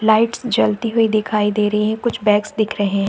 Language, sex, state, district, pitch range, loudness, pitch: Hindi, female, Bihar, Saharsa, 210-225 Hz, -18 LUFS, 215 Hz